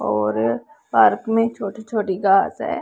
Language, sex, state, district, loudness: Hindi, female, Punjab, Pathankot, -20 LUFS